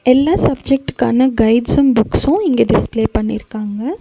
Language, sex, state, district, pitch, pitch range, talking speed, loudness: Tamil, female, Tamil Nadu, Nilgiris, 250 Hz, 225-275 Hz, 105 wpm, -15 LUFS